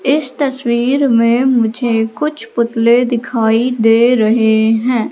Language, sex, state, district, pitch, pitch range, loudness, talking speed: Hindi, female, Madhya Pradesh, Katni, 235 Hz, 225-255 Hz, -13 LUFS, 115 wpm